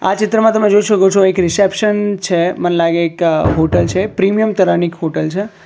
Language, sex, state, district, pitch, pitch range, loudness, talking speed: Gujarati, male, Gujarat, Valsad, 190 Hz, 175-205 Hz, -13 LUFS, 200 wpm